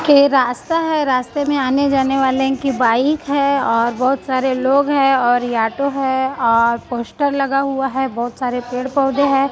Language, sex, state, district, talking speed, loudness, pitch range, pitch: Hindi, female, Chhattisgarh, Raipur, 190 wpm, -17 LUFS, 250-280 Hz, 265 Hz